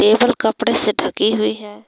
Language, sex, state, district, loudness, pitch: Hindi, female, Jharkhand, Palamu, -17 LUFS, 215 Hz